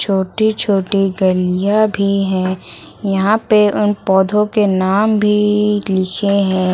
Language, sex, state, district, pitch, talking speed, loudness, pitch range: Hindi, female, Uttar Pradesh, Lucknow, 200 Hz, 125 wpm, -15 LUFS, 190-210 Hz